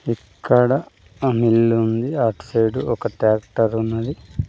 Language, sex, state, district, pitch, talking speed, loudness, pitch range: Telugu, male, Andhra Pradesh, Sri Satya Sai, 115 Hz, 120 wpm, -20 LUFS, 110-120 Hz